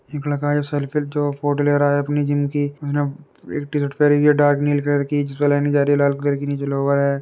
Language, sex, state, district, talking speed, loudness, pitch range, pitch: Hindi, male, Uttar Pradesh, Varanasi, 265 wpm, -19 LUFS, 140-145 Hz, 145 Hz